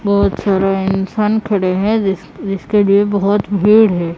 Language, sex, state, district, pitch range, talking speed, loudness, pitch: Hindi, female, Odisha, Khordha, 195-210 Hz, 160 wpm, -14 LUFS, 200 Hz